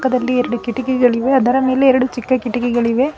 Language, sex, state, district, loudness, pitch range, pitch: Kannada, female, Karnataka, Bangalore, -16 LUFS, 245-260 Hz, 255 Hz